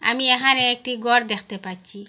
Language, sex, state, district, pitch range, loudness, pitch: Bengali, female, Assam, Hailakandi, 200-250 Hz, -18 LUFS, 235 Hz